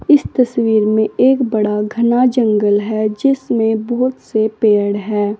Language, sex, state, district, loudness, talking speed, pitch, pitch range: Hindi, female, Uttar Pradesh, Saharanpur, -15 LUFS, 145 wpm, 220 Hz, 210-250 Hz